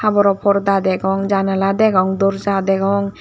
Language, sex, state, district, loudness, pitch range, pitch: Chakma, female, Tripura, Dhalai, -16 LUFS, 195-200 Hz, 195 Hz